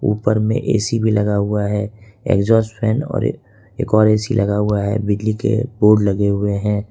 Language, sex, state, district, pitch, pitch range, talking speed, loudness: Hindi, male, Jharkhand, Ranchi, 105 Hz, 105-110 Hz, 190 wpm, -17 LUFS